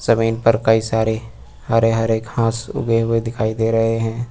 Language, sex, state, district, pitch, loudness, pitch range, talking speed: Hindi, male, Uttar Pradesh, Lucknow, 115 Hz, -18 LUFS, 110-115 Hz, 180 wpm